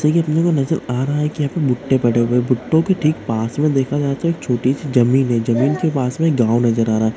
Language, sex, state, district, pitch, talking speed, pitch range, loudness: Hindi, male, West Bengal, Dakshin Dinajpur, 135 Hz, 250 wpm, 120-150 Hz, -17 LUFS